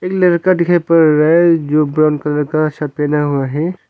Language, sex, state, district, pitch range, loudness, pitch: Hindi, male, Arunachal Pradesh, Longding, 150-170 Hz, -14 LUFS, 155 Hz